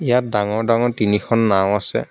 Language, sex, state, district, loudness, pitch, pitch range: Assamese, male, Assam, Kamrup Metropolitan, -18 LUFS, 110 Hz, 105-120 Hz